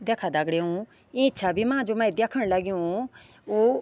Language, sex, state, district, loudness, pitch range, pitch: Garhwali, female, Uttarakhand, Tehri Garhwal, -25 LUFS, 185-230 Hz, 215 Hz